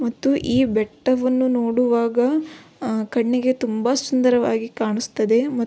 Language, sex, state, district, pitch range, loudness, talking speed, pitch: Kannada, female, Karnataka, Belgaum, 230-255 Hz, -20 LUFS, 105 wpm, 245 Hz